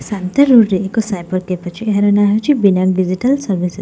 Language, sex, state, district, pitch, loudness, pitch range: Odia, female, Odisha, Khordha, 200 Hz, -14 LUFS, 185-220 Hz